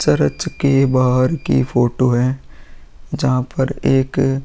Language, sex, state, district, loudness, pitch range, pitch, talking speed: Hindi, male, Uttar Pradesh, Muzaffarnagar, -17 LUFS, 120-135 Hz, 130 Hz, 135 wpm